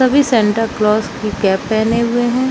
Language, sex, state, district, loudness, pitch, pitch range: Hindi, female, Chhattisgarh, Bilaspur, -15 LUFS, 225 Hz, 215-240 Hz